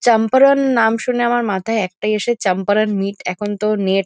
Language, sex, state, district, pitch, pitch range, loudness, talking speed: Bengali, female, West Bengal, North 24 Parganas, 215 Hz, 195-240 Hz, -17 LUFS, 205 wpm